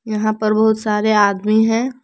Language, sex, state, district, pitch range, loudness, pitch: Hindi, female, Jharkhand, Palamu, 215-220 Hz, -16 LUFS, 215 Hz